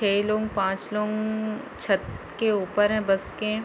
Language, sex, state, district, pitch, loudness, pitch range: Hindi, female, Chhattisgarh, Bilaspur, 215 Hz, -26 LUFS, 200-215 Hz